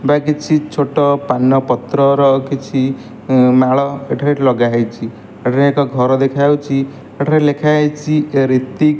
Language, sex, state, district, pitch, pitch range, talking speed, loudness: Odia, male, Odisha, Malkangiri, 140 Hz, 130-145 Hz, 125 wpm, -14 LUFS